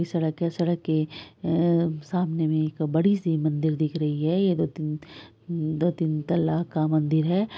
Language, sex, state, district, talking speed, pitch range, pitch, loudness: Hindi, female, Bihar, Araria, 165 wpm, 155-170 Hz, 160 Hz, -25 LUFS